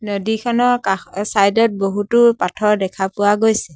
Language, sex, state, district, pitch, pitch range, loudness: Assamese, male, Assam, Sonitpur, 205 Hz, 195-225 Hz, -17 LUFS